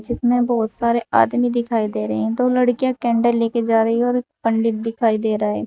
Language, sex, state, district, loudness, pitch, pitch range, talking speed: Hindi, female, Uttar Pradesh, Saharanpur, -19 LUFS, 235 Hz, 225-245 Hz, 210 wpm